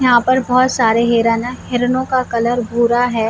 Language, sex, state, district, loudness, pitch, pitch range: Hindi, female, Jharkhand, Jamtara, -15 LUFS, 245 Hz, 235-255 Hz